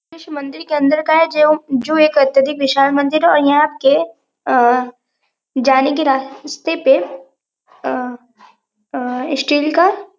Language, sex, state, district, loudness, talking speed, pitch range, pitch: Hindi, female, Uttar Pradesh, Varanasi, -15 LUFS, 155 wpm, 270-305 Hz, 285 Hz